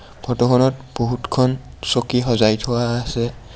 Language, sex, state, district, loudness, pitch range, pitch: Assamese, male, Assam, Kamrup Metropolitan, -19 LUFS, 115-125 Hz, 120 Hz